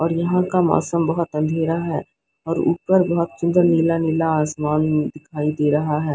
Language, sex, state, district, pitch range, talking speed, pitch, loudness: Hindi, female, Odisha, Sambalpur, 155-170 Hz, 175 wpm, 165 Hz, -20 LUFS